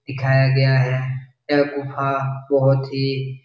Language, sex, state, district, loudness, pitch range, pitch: Hindi, male, Bihar, Jahanabad, -20 LUFS, 135-140 Hz, 135 Hz